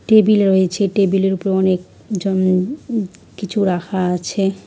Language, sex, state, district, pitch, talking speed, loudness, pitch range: Bengali, female, West Bengal, Alipurduar, 195 Hz, 140 wpm, -17 LUFS, 185-200 Hz